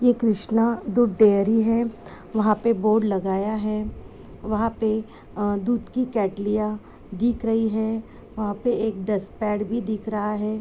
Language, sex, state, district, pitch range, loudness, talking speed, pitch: Hindi, female, Maharashtra, Solapur, 210-225 Hz, -23 LUFS, 135 wpm, 215 Hz